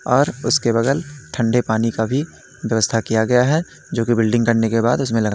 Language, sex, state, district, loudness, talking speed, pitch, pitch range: Hindi, male, Uttar Pradesh, Lalitpur, -18 LUFS, 180 wpm, 120 Hz, 115-135 Hz